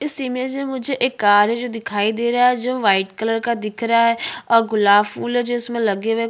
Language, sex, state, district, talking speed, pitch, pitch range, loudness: Hindi, female, Chhattisgarh, Bastar, 265 wpm, 230 Hz, 215-245 Hz, -18 LUFS